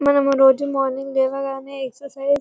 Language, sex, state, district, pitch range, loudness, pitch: Telugu, female, Telangana, Karimnagar, 270-280 Hz, -19 LUFS, 275 Hz